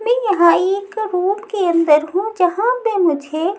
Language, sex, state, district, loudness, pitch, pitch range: Hindi, female, Maharashtra, Mumbai Suburban, -16 LUFS, 385 Hz, 345-420 Hz